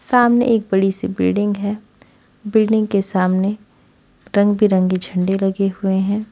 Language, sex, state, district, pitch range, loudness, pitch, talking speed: Hindi, female, Haryana, Rohtak, 190-215 Hz, -17 LUFS, 200 Hz, 140 wpm